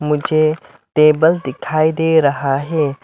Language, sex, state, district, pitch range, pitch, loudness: Hindi, male, Arunachal Pradesh, Lower Dibang Valley, 145-160 Hz, 155 Hz, -15 LUFS